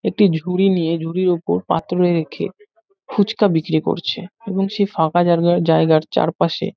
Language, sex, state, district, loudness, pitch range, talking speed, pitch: Bengali, male, West Bengal, North 24 Parganas, -18 LUFS, 165-205 Hz, 150 wpm, 180 Hz